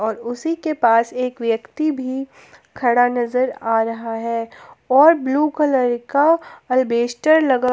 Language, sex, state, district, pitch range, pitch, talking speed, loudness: Hindi, female, Jharkhand, Palamu, 235-295 Hz, 250 Hz, 140 wpm, -18 LUFS